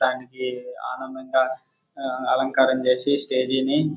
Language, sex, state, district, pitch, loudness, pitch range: Telugu, male, Andhra Pradesh, Guntur, 130 Hz, -23 LUFS, 130-135 Hz